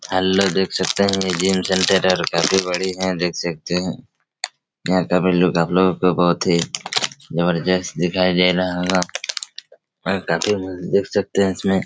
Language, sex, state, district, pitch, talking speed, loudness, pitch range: Hindi, male, Chhattisgarh, Raigarh, 90 Hz, 180 wpm, -19 LUFS, 90-95 Hz